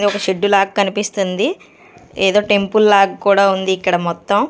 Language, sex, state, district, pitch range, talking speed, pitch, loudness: Telugu, female, Andhra Pradesh, Sri Satya Sai, 190-205 Hz, 160 wpm, 200 Hz, -15 LUFS